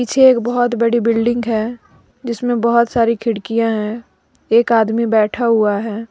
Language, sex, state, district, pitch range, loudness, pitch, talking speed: Hindi, female, Jharkhand, Deoghar, 225-240 Hz, -16 LUFS, 230 Hz, 155 wpm